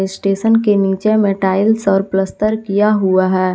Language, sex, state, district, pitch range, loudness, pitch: Hindi, female, Jharkhand, Palamu, 190-215 Hz, -14 LUFS, 195 Hz